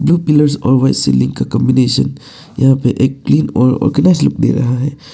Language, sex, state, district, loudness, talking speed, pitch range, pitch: Hindi, male, Arunachal Pradesh, Papum Pare, -13 LUFS, 200 wpm, 125-145 Hz, 135 Hz